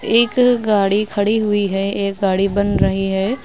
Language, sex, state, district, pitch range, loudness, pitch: Hindi, female, Uttar Pradesh, Lucknow, 195-220 Hz, -17 LUFS, 205 Hz